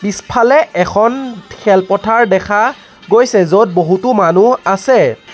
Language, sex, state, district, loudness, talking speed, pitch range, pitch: Assamese, male, Assam, Sonitpur, -11 LUFS, 100 wpm, 190-235 Hz, 205 Hz